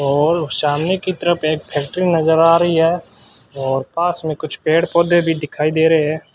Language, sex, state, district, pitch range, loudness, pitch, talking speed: Hindi, male, Rajasthan, Bikaner, 150-170 Hz, -16 LUFS, 160 Hz, 200 wpm